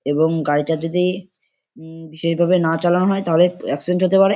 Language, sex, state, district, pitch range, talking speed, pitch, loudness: Bengali, male, West Bengal, Kolkata, 160-180 Hz, 180 wpm, 170 Hz, -18 LUFS